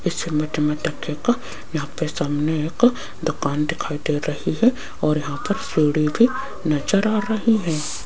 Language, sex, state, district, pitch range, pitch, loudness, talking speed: Hindi, female, Rajasthan, Jaipur, 150-205 Hz, 155 Hz, -22 LUFS, 150 wpm